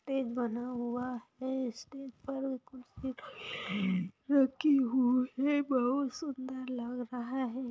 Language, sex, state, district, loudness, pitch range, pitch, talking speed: Hindi, female, Bihar, Saran, -34 LUFS, 245-270 Hz, 255 Hz, 115 wpm